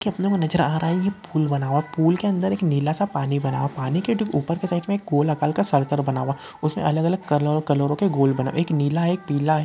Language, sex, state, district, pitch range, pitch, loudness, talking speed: Hindi, male, West Bengal, Purulia, 145-180 Hz, 155 Hz, -22 LUFS, 255 wpm